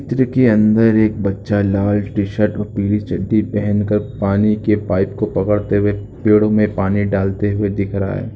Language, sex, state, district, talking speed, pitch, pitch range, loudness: Hindi, male, Chhattisgarh, Jashpur, 185 wpm, 105 Hz, 100-105 Hz, -17 LUFS